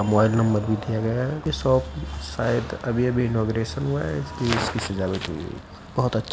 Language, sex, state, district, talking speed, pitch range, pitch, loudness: Hindi, male, Uttar Pradesh, Jyotiba Phule Nagar, 210 wpm, 90-120 Hz, 110 Hz, -24 LUFS